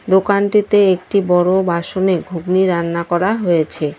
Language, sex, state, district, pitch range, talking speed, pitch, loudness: Bengali, female, West Bengal, Cooch Behar, 170-190 Hz, 120 wpm, 185 Hz, -16 LUFS